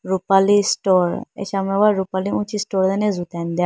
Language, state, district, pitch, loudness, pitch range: Idu Mishmi, Arunachal Pradesh, Lower Dibang Valley, 195 Hz, -19 LUFS, 185-205 Hz